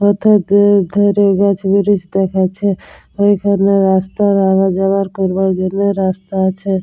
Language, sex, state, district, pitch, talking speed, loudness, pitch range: Bengali, female, West Bengal, Jalpaiguri, 195 Hz, 115 wpm, -13 LUFS, 190-200 Hz